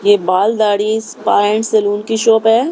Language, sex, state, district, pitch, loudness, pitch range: Hindi, female, Haryana, Rohtak, 220 Hz, -14 LUFS, 210-225 Hz